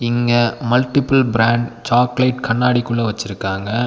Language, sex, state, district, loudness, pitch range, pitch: Tamil, male, Tamil Nadu, Nilgiris, -17 LUFS, 115-125 Hz, 120 Hz